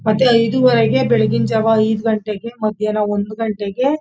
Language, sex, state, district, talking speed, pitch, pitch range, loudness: Kannada, female, Karnataka, Mysore, 150 wpm, 220 Hz, 215-235 Hz, -16 LUFS